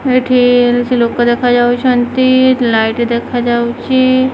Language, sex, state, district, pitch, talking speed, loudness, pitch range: Odia, female, Odisha, Khordha, 245 Hz, 95 wpm, -11 LUFS, 240-255 Hz